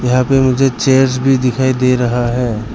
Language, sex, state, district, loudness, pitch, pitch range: Hindi, male, Arunachal Pradesh, Lower Dibang Valley, -13 LUFS, 125 Hz, 125-130 Hz